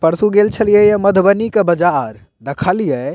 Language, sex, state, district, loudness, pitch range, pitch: Maithili, male, Bihar, Purnia, -13 LUFS, 165-210 Hz, 200 Hz